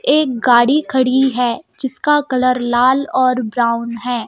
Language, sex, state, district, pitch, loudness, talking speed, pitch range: Hindi, female, Madhya Pradesh, Bhopal, 255 Hz, -15 LUFS, 140 wpm, 240-270 Hz